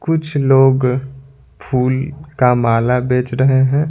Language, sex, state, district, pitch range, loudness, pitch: Hindi, male, Bihar, Patna, 125-135 Hz, -15 LUFS, 135 Hz